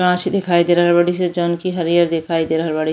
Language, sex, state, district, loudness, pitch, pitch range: Bhojpuri, female, Uttar Pradesh, Deoria, -17 LUFS, 175 Hz, 165-180 Hz